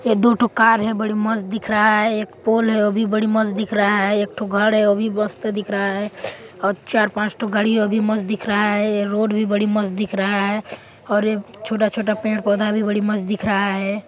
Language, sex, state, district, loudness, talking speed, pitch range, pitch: Hindi, female, Chhattisgarh, Balrampur, -19 LUFS, 245 wpm, 205-220 Hz, 210 Hz